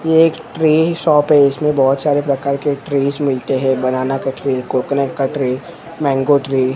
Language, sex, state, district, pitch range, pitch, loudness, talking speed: Hindi, male, Maharashtra, Mumbai Suburban, 135-150 Hz, 140 Hz, -16 LUFS, 195 wpm